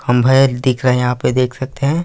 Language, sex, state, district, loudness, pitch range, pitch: Hindi, male, Chhattisgarh, Raigarh, -15 LUFS, 125-135 Hz, 130 Hz